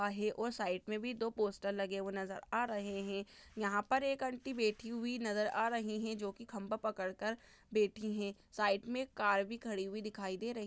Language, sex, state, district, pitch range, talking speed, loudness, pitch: Hindi, female, Chhattisgarh, Bastar, 200-230 Hz, 230 wpm, -38 LUFS, 215 Hz